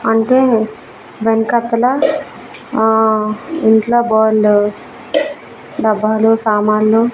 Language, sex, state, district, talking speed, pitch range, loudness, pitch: Telugu, female, Andhra Pradesh, Manyam, 60 wpm, 215-240 Hz, -14 LUFS, 225 Hz